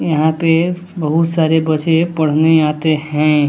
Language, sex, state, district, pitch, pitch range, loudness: Hindi, male, Bihar, West Champaran, 160 Hz, 155-165 Hz, -15 LUFS